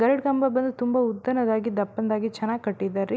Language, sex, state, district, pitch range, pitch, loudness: Kannada, female, Karnataka, Belgaum, 215-255 Hz, 230 Hz, -25 LUFS